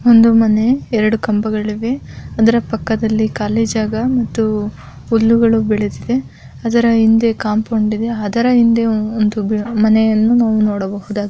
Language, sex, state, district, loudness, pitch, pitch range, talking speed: Kannada, female, Karnataka, Raichur, -15 LUFS, 220 Hz, 215-230 Hz, 120 wpm